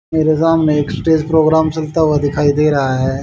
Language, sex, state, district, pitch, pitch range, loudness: Hindi, male, Haryana, Jhajjar, 155 Hz, 145-160 Hz, -14 LUFS